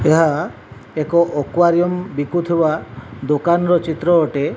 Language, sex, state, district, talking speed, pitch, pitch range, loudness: Odia, male, Odisha, Malkangiri, 105 wpm, 160 Hz, 145-170 Hz, -17 LUFS